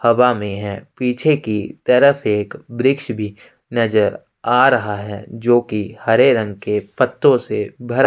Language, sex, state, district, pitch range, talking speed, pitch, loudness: Hindi, male, Chhattisgarh, Sukma, 105-125 Hz, 155 wpm, 115 Hz, -17 LUFS